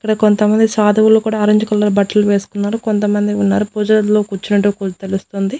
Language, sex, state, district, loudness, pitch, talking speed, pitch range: Telugu, female, Andhra Pradesh, Annamaya, -14 LUFS, 210 Hz, 150 wpm, 205-215 Hz